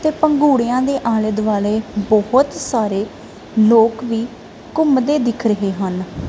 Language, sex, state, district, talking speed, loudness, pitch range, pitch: Punjabi, female, Punjab, Kapurthala, 125 wpm, -17 LUFS, 215-270 Hz, 230 Hz